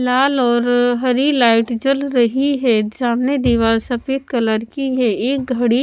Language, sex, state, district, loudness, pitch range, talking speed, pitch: Hindi, female, Bihar, Patna, -16 LUFS, 235-270 Hz, 165 wpm, 245 Hz